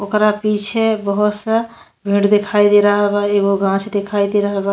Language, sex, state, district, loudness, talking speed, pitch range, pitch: Bhojpuri, female, Uttar Pradesh, Ghazipur, -16 LUFS, 190 wpm, 200-210 Hz, 205 Hz